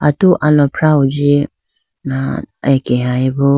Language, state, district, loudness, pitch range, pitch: Idu Mishmi, Arunachal Pradesh, Lower Dibang Valley, -14 LUFS, 125-145 Hz, 140 Hz